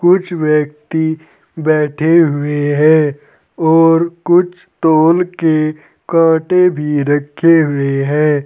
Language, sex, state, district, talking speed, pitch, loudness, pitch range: Hindi, male, Uttar Pradesh, Saharanpur, 100 wpm, 160 Hz, -13 LUFS, 150-165 Hz